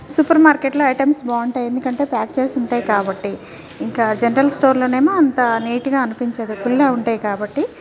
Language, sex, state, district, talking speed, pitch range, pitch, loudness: Telugu, female, Telangana, Nalgonda, 175 wpm, 235-275 Hz, 255 Hz, -17 LUFS